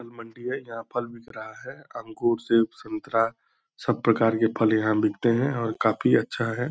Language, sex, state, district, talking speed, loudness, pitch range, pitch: Hindi, male, Bihar, Purnia, 195 wpm, -25 LUFS, 115-120 Hz, 115 Hz